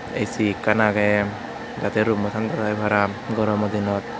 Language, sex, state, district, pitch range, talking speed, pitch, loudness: Chakma, male, Tripura, West Tripura, 105-110 Hz, 170 wpm, 105 Hz, -22 LUFS